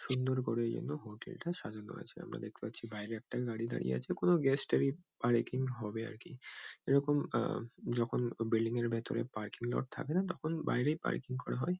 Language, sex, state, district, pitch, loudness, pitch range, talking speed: Bengali, male, West Bengal, Kolkata, 120 Hz, -36 LUFS, 115-145 Hz, 190 wpm